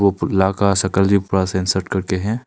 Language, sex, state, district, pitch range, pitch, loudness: Hindi, male, Arunachal Pradesh, Longding, 95-100 Hz, 95 Hz, -18 LUFS